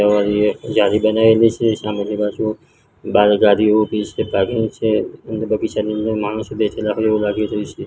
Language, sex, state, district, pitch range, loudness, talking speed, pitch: Gujarati, male, Gujarat, Gandhinagar, 105-110 Hz, -17 LUFS, 150 wpm, 105 Hz